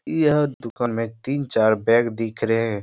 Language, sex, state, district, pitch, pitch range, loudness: Hindi, male, Bihar, Jahanabad, 115 Hz, 115-135 Hz, -21 LUFS